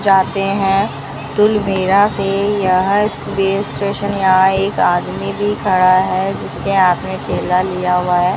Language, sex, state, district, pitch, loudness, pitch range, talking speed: Hindi, female, Rajasthan, Bikaner, 195 Hz, -15 LUFS, 185-200 Hz, 145 wpm